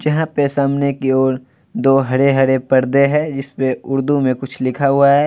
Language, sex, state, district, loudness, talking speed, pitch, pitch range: Hindi, male, Bihar, Vaishali, -16 LUFS, 195 wpm, 135 Hz, 130-140 Hz